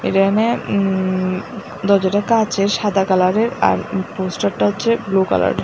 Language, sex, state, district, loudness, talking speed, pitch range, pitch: Bengali, female, Tripura, West Tripura, -17 LUFS, 150 wpm, 185-210 Hz, 195 Hz